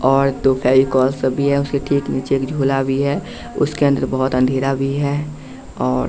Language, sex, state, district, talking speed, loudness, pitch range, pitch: Hindi, male, Bihar, West Champaran, 195 wpm, -18 LUFS, 130-140 Hz, 135 Hz